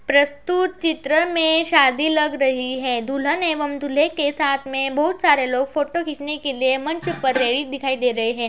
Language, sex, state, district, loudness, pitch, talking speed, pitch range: Hindi, female, Uttar Pradesh, Budaun, -20 LUFS, 285 Hz, 190 wpm, 265-310 Hz